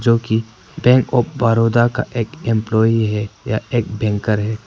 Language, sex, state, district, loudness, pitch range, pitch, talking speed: Hindi, male, Arunachal Pradesh, Papum Pare, -17 LUFS, 110-120 Hz, 115 Hz, 165 wpm